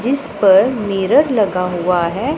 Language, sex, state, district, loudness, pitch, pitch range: Hindi, female, Punjab, Pathankot, -15 LUFS, 210 Hz, 180-280 Hz